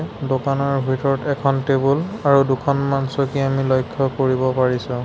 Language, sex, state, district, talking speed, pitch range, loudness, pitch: Assamese, male, Assam, Sonitpur, 130 wpm, 130-140 Hz, -19 LUFS, 135 Hz